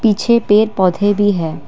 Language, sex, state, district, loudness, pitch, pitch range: Hindi, female, Assam, Kamrup Metropolitan, -14 LUFS, 205 Hz, 185-220 Hz